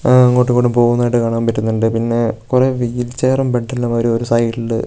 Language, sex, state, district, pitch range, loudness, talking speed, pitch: Malayalam, male, Kerala, Wayanad, 115-125 Hz, -15 LUFS, 185 wpm, 120 Hz